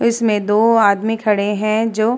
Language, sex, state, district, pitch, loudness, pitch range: Hindi, female, Uttar Pradesh, Muzaffarnagar, 220 Hz, -16 LUFS, 210-225 Hz